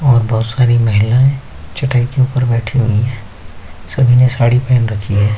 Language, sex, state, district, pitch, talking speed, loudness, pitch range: Hindi, male, Chhattisgarh, Kabirdham, 120 Hz, 180 wpm, -13 LUFS, 105-125 Hz